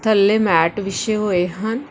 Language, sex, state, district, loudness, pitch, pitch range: Punjabi, female, Karnataka, Bangalore, -18 LUFS, 210 Hz, 190-220 Hz